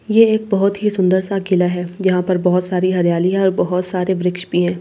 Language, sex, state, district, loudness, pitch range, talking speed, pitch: Hindi, female, Delhi, New Delhi, -17 LUFS, 180-195 Hz, 260 wpm, 185 Hz